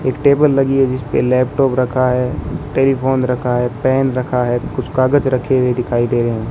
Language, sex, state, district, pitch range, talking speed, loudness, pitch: Hindi, male, Rajasthan, Bikaner, 125-135 Hz, 205 wpm, -16 LUFS, 130 Hz